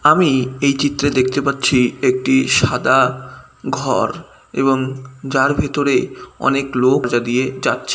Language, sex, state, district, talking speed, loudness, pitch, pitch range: Bengali, male, West Bengal, Dakshin Dinajpur, 120 wpm, -17 LUFS, 130 Hz, 125-140 Hz